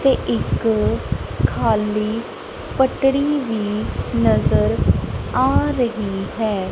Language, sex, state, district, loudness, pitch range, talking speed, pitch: Punjabi, female, Punjab, Kapurthala, -20 LUFS, 210-265 Hz, 80 wpm, 225 Hz